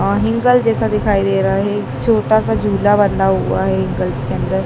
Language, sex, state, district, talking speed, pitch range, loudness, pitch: Hindi, female, Madhya Pradesh, Dhar, 195 wpm, 190-215 Hz, -15 LUFS, 200 Hz